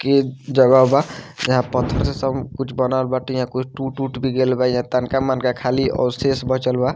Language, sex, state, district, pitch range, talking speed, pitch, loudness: Bhojpuri, male, Bihar, Muzaffarpur, 125-135 Hz, 190 wpm, 130 Hz, -19 LUFS